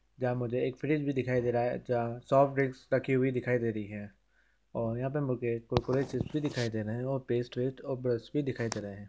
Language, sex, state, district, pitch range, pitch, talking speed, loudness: Maithili, male, Bihar, Samastipur, 120-135 Hz, 125 Hz, 250 wpm, -32 LUFS